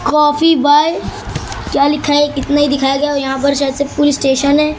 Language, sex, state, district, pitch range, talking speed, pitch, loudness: Hindi, male, Maharashtra, Mumbai Suburban, 280-295 Hz, 240 wpm, 290 Hz, -13 LUFS